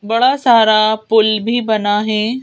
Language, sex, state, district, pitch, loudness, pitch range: Hindi, female, Madhya Pradesh, Bhopal, 220 Hz, -13 LUFS, 215-235 Hz